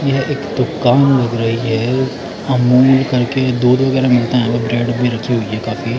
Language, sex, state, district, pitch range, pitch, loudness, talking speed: Hindi, male, Bihar, Katihar, 120-130 Hz, 125 Hz, -15 LUFS, 200 wpm